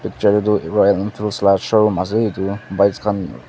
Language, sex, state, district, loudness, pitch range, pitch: Nagamese, male, Nagaland, Dimapur, -17 LUFS, 95-105 Hz, 100 Hz